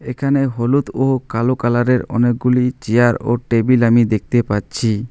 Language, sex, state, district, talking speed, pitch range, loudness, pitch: Bengali, male, West Bengal, Alipurduar, 140 wpm, 115-130 Hz, -16 LUFS, 120 Hz